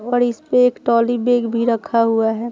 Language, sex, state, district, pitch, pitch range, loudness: Hindi, female, Bihar, Saharsa, 235 Hz, 230-245 Hz, -17 LUFS